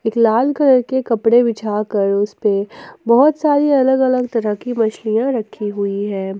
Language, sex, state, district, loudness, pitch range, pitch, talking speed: Hindi, female, Jharkhand, Ranchi, -16 LUFS, 210-255 Hz, 230 Hz, 170 wpm